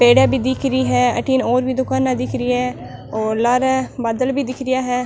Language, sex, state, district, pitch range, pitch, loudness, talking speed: Marwari, female, Rajasthan, Nagaur, 245-260 Hz, 255 Hz, -18 LUFS, 225 wpm